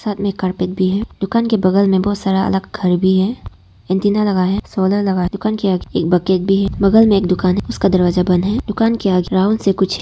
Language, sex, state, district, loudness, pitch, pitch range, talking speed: Hindi, female, Arunachal Pradesh, Papum Pare, -16 LUFS, 190 Hz, 185-205 Hz, 270 wpm